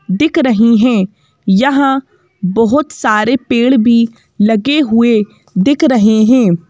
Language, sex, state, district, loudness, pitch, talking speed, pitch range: Hindi, female, Madhya Pradesh, Bhopal, -11 LUFS, 235 Hz, 115 wpm, 215-270 Hz